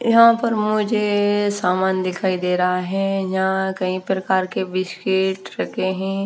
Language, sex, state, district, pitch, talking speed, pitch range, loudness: Hindi, female, Haryana, Rohtak, 190 Hz, 145 wpm, 185-205 Hz, -20 LUFS